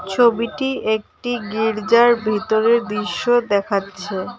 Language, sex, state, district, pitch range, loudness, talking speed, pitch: Bengali, female, West Bengal, Alipurduar, 210-240 Hz, -19 LUFS, 80 wpm, 220 Hz